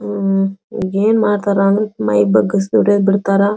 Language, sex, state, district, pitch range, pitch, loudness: Kannada, female, Karnataka, Belgaum, 195-205 Hz, 200 Hz, -15 LUFS